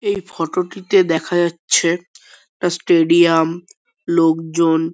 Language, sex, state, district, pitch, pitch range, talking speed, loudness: Bengali, male, West Bengal, North 24 Parganas, 170 Hz, 165-180 Hz, 110 wpm, -17 LUFS